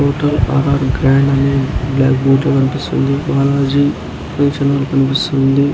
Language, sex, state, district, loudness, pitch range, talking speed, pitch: Telugu, male, Andhra Pradesh, Anantapur, -14 LUFS, 135-140 Hz, 135 wpm, 140 Hz